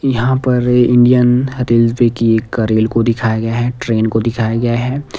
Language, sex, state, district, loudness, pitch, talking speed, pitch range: Hindi, male, Himachal Pradesh, Shimla, -14 LUFS, 120 Hz, 185 wpm, 115-125 Hz